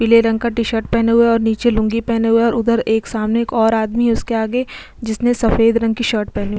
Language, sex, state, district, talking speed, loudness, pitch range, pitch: Hindi, female, Chhattisgarh, Sukma, 290 wpm, -16 LUFS, 225-235 Hz, 230 Hz